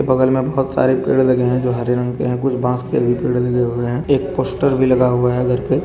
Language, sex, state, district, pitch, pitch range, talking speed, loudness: Hindi, male, Jharkhand, Deoghar, 125 Hz, 125-130 Hz, 275 wpm, -17 LUFS